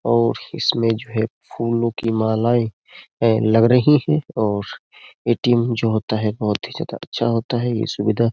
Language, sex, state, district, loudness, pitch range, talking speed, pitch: Hindi, male, Uttar Pradesh, Jyotiba Phule Nagar, -20 LUFS, 110-120 Hz, 165 wpm, 115 Hz